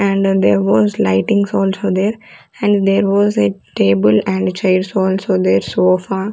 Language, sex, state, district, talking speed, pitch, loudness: English, female, Chandigarh, Chandigarh, 160 wpm, 190 Hz, -15 LUFS